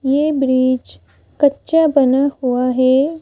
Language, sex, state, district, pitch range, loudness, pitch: Hindi, female, Madhya Pradesh, Bhopal, 255-290 Hz, -15 LUFS, 270 Hz